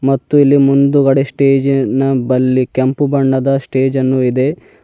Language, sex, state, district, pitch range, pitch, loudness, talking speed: Kannada, male, Karnataka, Bidar, 130-140 Hz, 135 Hz, -13 LUFS, 110 wpm